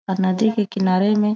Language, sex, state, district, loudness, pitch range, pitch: Chhattisgarhi, female, Chhattisgarh, Raigarh, -19 LUFS, 190-210 Hz, 200 Hz